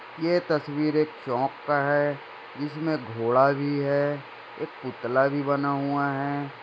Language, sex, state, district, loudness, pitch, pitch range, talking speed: Hindi, male, Maharashtra, Dhule, -26 LUFS, 145 Hz, 140-150 Hz, 145 wpm